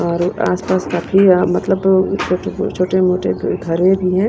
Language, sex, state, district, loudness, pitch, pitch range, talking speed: Hindi, female, Punjab, Kapurthala, -16 LUFS, 185 Hz, 180-190 Hz, 125 wpm